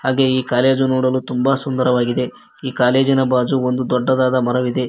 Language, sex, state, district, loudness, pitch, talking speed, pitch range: Kannada, male, Karnataka, Koppal, -17 LUFS, 130 Hz, 145 wpm, 125-130 Hz